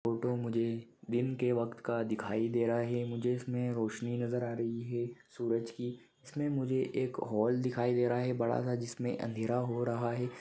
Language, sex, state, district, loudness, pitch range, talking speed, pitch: Hindi, male, Maharashtra, Pune, -34 LUFS, 115-125 Hz, 185 wpm, 120 Hz